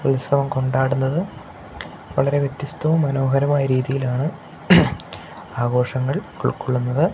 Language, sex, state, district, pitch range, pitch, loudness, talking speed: Malayalam, male, Kerala, Kasaragod, 130-145 Hz, 135 Hz, -20 LUFS, 65 wpm